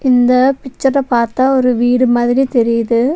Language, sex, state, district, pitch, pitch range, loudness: Tamil, female, Tamil Nadu, Nilgiris, 250 Hz, 240-265 Hz, -13 LUFS